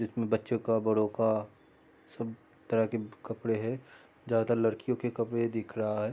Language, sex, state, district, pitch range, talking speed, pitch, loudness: Hindi, male, Bihar, Darbhanga, 110-115 Hz, 165 wpm, 115 Hz, -32 LUFS